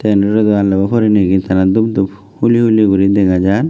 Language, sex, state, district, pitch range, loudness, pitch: Chakma, male, Tripura, West Tripura, 95-110 Hz, -12 LUFS, 100 Hz